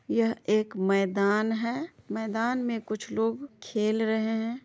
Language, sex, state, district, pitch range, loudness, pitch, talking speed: Hindi, female, Bihar, Madhepura, 215-230 Hz, -28 LUFS, 225 Hz, 140 wpm